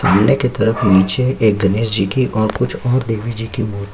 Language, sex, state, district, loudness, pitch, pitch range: Hindi, male, Chhattisgarh, Sukma, -16 LUFS, 110 Hz, 100-125 Hz